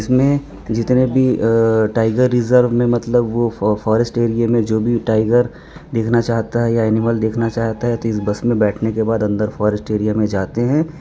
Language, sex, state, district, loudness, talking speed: Hindi, female, Arunachal Pradesh, Papum Pare, -17 LUFS, 185 wpm